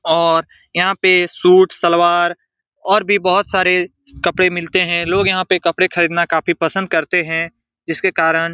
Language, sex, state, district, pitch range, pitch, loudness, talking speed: Hindi, male, Bihar, Saran, 165-185 Hz, 175 Hz, -15 LUFS, 170 wpm